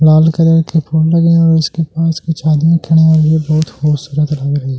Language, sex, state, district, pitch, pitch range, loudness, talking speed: Hindi, male, Delhi, New Delhi, 160 Hz, 150-165 Hz, -12 LUFS, 250 wpm